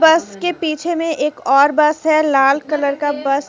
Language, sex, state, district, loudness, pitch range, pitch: Hindi, female, Jharkhand, Deoghar, -16 LUFS, 280-320 Hz, 300 Hz